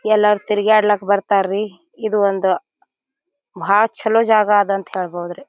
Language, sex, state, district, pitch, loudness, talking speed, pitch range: Kannada, female, Karnataka, Bijapur, 205 Hz, -17 LUFS, 120 wpm, 195-215 Hz